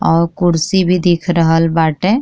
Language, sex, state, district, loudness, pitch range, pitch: Bhojpuri, female, Uttar Pradesh, Deoria, -13 LUFS, 165-180 Hz, 170 Hz